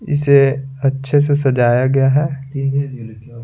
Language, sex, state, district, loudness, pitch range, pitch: Hindi, male, Bihar, Patna, -15 LUFS, 130-140 Hz, 135 Hz